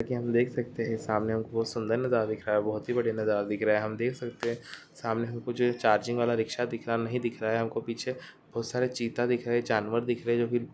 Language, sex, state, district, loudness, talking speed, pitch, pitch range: Hindi, male, Rajasthan, Churu, -30 LUFS, 280 wpm, 115 Hz, 110-120 Hz